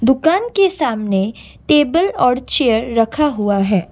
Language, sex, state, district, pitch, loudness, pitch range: Hindi, female, Assam, Kamrup Metropolitan, 250 Hz, -16 LUFS, 215-305 Hz